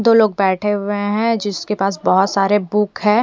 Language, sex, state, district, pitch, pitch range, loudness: Hindi, female, Punjab, Fazilka, 205 Hz, 195-210 Hz, -17 LUFS